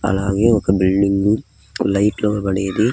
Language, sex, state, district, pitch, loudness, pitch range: Telugu, male, Andhra Pradesh, Sri Satya Sai, 100 Hz, -17 LUFS, 95-105 Hz